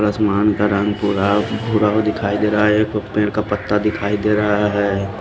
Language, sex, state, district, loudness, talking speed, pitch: Hindi, male, Himachal Pradesh, Shimla, -17 LUFS, 205 wpm, 105 Hz